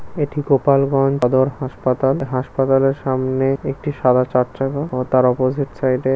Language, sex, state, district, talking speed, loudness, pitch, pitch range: Bengali, male, West Bengal, Kolkata, 145 wpm, -18 LUFS, 135 Hz, 130-140 Hz